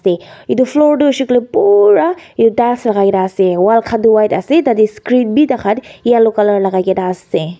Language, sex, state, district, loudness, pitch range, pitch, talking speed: Nagamese, female, Nagaland, Dimapur, -12 LUFS, 195-265 Hz, 230 Hz, 180 wpm